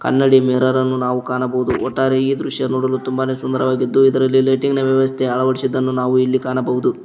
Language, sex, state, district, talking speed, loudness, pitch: Kannada, male, Karnataka, Koppal, 160 wpm, -17 LUFS, 130 Hz